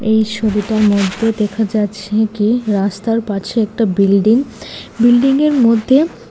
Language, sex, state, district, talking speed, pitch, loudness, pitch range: Bengali, female, Tripura, West Tripura, 115 wpm, 220 Hz, -14 LUFS, 205-230 Hz